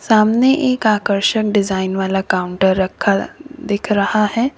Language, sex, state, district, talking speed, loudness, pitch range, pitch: Hindi, female, Uttar Pradesh, Lalitpur, 130 wpm, -16 LUFS, 190-230 Hz, 205 Hz